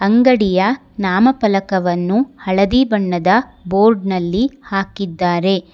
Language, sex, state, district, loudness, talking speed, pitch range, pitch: Kannada, female, Karnataka, Bangalore, -16 LUFS, 75 wpm, 185-235 Hz, 195 Hz